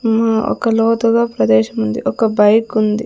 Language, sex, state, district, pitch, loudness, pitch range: Telugu, female, Andhra Pradesh, Sri Satya Sai, 225 Hz, -15 LUFS, 210-230 Hz